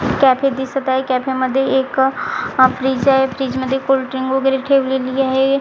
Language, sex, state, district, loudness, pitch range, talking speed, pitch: Marathi, female, Maharashtra, Gondia, -16 LUFS, 260-270 Hz, 130 wpm, 265 Hz